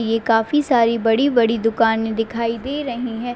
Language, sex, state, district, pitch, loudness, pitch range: Hindi, female, Bihar, Madhepura, 230 Hz, -18 LUFS, 225-245 Hz